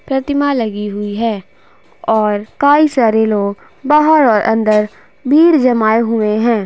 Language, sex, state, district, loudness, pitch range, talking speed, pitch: Hindi, female, Bihar, Darbhanga, -13 LUFS, 210-280 Hz, 135 wpm, 225 Hz